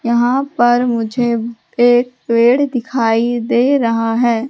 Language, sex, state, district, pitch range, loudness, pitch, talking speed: Hindi, female, Madhya Pradesh, Katni, 230-245 Hz, -15 LUFS, 240 Hz, 120 wpm